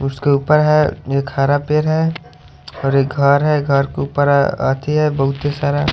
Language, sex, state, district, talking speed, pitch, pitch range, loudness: Hindi, male, Haryana, Charkhi Dadri, 180 wpm, 145 Hz, 140-150 Hz, -16 LUFS